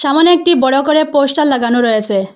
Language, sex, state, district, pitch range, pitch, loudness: Bengali, female, Assam, Hailakandi, 240-305 Hz, 275 Hz, -12 LUFS